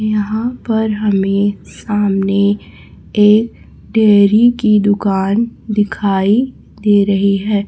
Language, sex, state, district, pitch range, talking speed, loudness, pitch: Hindi, female, Chhattisgarh, Raipur, 200-215 Hz, 95 wpm, -14 LUFS, 210 Hz